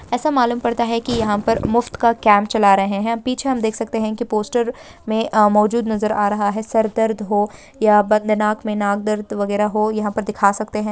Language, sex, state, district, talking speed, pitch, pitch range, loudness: Hindi, female, West Bengal, Purulia, 230 wpm, 215 Hz, 210-230 Hz, -18 LUFS